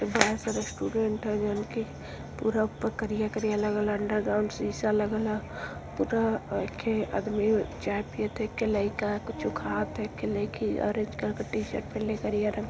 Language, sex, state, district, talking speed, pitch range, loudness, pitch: Hindi, female, Uttar Pradesh, Varanasi, 180 wpm, 210-220 Hz, -30 LUFS, 215 Hz